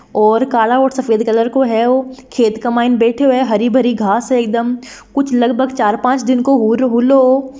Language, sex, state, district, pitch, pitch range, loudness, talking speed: Marwari, female, Rajasthan, Nagaur, 245 Hz, 230-260 Hz, -13 LUFS, 215 wpm